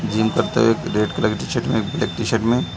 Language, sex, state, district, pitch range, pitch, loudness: Hindi, male, Chhattisgarh, Balrampur, 105-115 Hz, 110 Hz, -20 LUFS